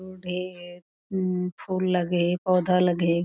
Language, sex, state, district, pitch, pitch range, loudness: Chhattisgarhi, female, Chhattisgarh, Korba, 180 Hz, 175-185 Hz, -25 LUFS